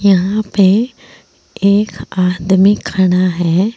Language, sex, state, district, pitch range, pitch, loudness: Hindi, female, Uttar Pradesh, Saharanpur, 180-205 Hz, 190 Hz, -13 LUFS